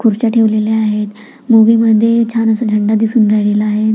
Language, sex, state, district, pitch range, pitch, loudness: Marathi, female, Maharashtra, Pune, 215-230 Hz, 220 Hz, -12 LUFS